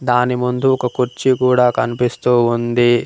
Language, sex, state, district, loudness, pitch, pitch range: Telugu, male, Telangana, Mahabubabad, -16 LUFS, 125 Hz, 120-125 Hz